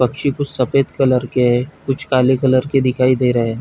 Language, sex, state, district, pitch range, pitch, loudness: Hindi, male, Chhattisgarh, Bilaspur, 125-135 Hz, 130 Hz, -16 LUFS